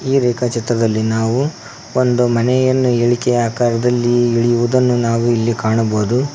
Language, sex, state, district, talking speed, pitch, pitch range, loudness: Kannada, male, Karnataka, Koppal, 115 wpm, 120 Hz, 115-125 Hz, -16 LUFS